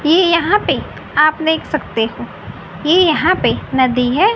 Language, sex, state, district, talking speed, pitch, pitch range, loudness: Hindi, female, Haryana, Rohtak, 165 wpm, 320 Hz, 265-355 Hz, -15 LUFS